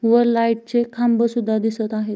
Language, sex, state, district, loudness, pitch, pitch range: Marathi, female, Maharashtra, Sindhudurg, -19 LUFS, 230 Hz, 220-235 Hz